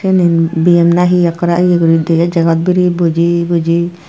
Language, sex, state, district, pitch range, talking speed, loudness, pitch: Chakma, female, Tripura, Dhalai, 165-175 Hz, 190 wpm, -11 LUFS, 170 Hz